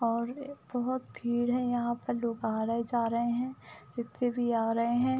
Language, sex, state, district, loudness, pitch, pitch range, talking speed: Hindi, female, Uttar Pradesh, Budaun, -31 LUFS, 240 Hz, 235-245 Hz, 205 wpm